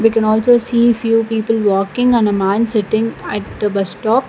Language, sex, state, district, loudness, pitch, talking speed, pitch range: English, female, Karnataka, Bangalore, -15 LUFS, 225 Hz, 195 wpm, 205-230 Hz